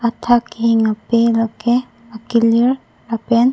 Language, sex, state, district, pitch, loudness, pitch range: Karbi, female, Assam, Karbi Anglong, 235 Hz, -16 LUFS, 230-240 Hz